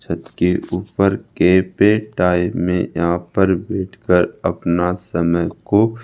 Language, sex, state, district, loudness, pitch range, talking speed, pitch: Hindi, male, Rajasthan, Jaipur, -18 LUFS, 90-100 Hz, 130 wpm, 90 Hz